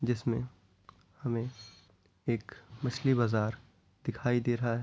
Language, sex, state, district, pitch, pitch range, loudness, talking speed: Hindi, male, Uttar Pradesh, Etah, 115 Hz, 100-120 Hz, -33 LUFS, 110 wpm